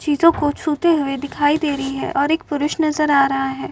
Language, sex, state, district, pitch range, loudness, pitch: Hindi, female, Uttar Pradesh, Muzaffarnagar, 280-305 Hz, -18 LUFS, 295 Hz